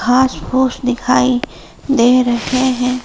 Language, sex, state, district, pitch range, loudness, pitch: Hindi, female, Jharkhand, Palamu, 245-260 Hz, -14 LUFS, 255 Hz